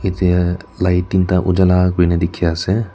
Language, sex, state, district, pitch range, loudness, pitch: Nagamese, male, Nagaland, Kohima, 90-95 Hz, -16 LUFS, 90 Hz